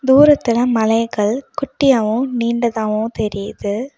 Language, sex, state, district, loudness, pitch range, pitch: Tamil, female, Tamil Nadu, Nilgiris, -17 LUFS, 220-265 Hz, 235 Hz